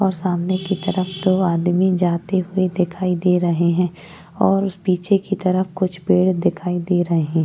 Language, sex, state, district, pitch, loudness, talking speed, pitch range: Hindi, female, Uttar Pradesh, Jyotiba Phule Nagar, 180 Hz, -19 LUFS, 175 wpm, 175-185 Hz